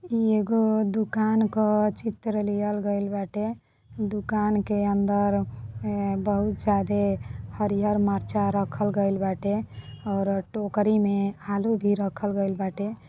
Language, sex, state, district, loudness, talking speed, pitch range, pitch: Bhojpuri, female, Uttar Pradesh, Deoria, -26 LUFS, 115 wpm, 200-210 Hz, 205 Hz